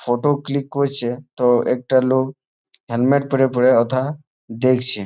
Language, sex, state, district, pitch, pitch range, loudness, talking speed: Bengali, male, West Bengal, Malda, 130 Hz, 125-140 Hz, -18 LUFS, 130 wpm